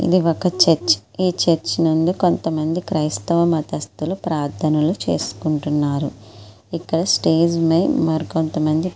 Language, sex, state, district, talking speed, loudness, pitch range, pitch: Telugu, female, Andhra Pradesh, Srikakulam, 100 wpm, -19 LUFS, 150-170 Hz, 160 Hz